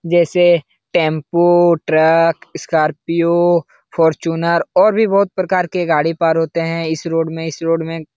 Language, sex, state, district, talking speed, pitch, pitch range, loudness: Hindi, male, Bihar, Jahanabad, 155 wpm, 165 Hz, 160-175 Hz, -15 LUFS